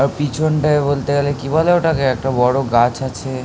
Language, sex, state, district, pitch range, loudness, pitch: Bengali, male, West Bengal, North 24 Parganas, 130-150 Hz, -17 LUFS, 140 Hz